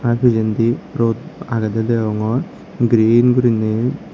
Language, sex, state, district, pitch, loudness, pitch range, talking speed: Chakma, male, Tripura, West Tripura, 115 Hz, -17 LUFS, 110-125 Hz, 100 wpm